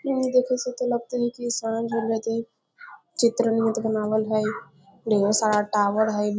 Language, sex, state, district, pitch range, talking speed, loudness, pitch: Maithili, female, Bihar, Muzaffarpur, 215-240 Hz, 180 wpm, -24 LUFS, 225 Hz